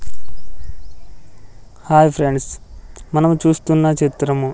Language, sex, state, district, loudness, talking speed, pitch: Telugu, male, Andhra Pradesh, Sri Satya Sai, -16 LUFS, 80 wpm, 135 Hz